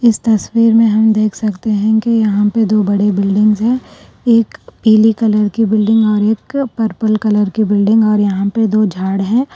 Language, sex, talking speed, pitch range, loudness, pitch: Urdu, female, 195 wpm, 210-225 Hz, -13 LUFS, 215 Hz